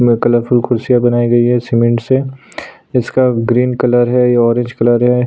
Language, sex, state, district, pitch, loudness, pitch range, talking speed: Hindi, male, Chhattisgarh, Sukma, 120 Hz, -13 LUFS, 120-125 Hz, 180 wpm